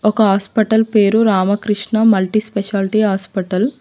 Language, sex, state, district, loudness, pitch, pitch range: Telugu, female, Telangana, Mahabubabad, -15 LUFS, 210 Hz, 195-220 Hz